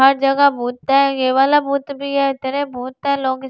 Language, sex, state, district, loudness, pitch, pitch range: Hindi, female, Delhi, New Delhi, -17 LUFS, 275 Hz, 265-280 Hz